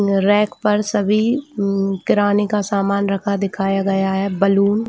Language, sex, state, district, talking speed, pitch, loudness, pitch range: Hindi, female, Chhattisgarh, Bilaspur, 145 wpm, 200 Hz, -18 LUFS, 195-210 Hz